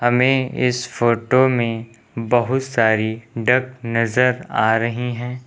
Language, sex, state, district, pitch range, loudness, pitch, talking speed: Hindi, male, Uttar Pradesh, Lucknow, 115-125 Hz, -19 LUFS, 120 Hz, 120 wpm